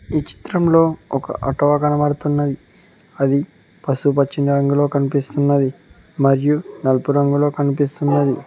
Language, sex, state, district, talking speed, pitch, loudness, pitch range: Telugu, male, Telangana, Mahabubabad, 90 wpm, 145 Hz, -18 LUFS, 140-150 Hz